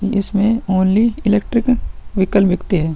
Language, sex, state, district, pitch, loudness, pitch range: Hindi, female, Bihar, Vaishali, 205 Hz, -16 LUFS, 190-220 Hz